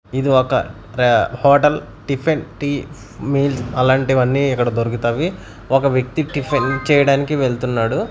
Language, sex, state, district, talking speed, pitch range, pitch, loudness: Telugu, male, Andhra Pradesh, Manyam, 110 wpm, 120-140 Hz, 130 Hz, -17 LUFS